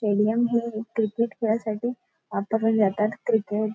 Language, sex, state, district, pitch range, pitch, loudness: Marathi, female, Maharashtra, Nagpur, 210-230 Hz, 220 Hz, -25 LUFS